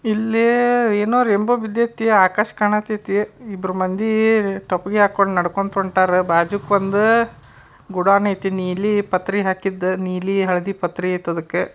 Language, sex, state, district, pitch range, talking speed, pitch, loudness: Kannada, male, Karnataka, Dharwad, 185-215 Hz, 140 wpm, 200 Hz, -18 LUFS